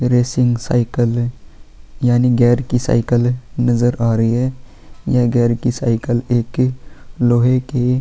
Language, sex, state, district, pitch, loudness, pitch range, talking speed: Hindi, male, Chhattisgarh, Kabirdham, 120 Hz, -16 LUFS, 120-125 Hz, 140 wpm